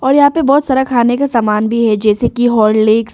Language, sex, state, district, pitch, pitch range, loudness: Hindi, female, Arunachal Pradesh, Longding, 240 Hz, 220-265 Hz, -12 LUFS